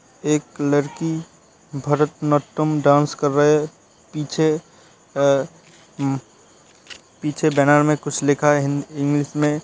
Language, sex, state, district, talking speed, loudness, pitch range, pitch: Hindi, male, Uttar Pradesh, Hamirpur, 110 wpm, -20 LUFS, 145-155 Hz, 150 Hz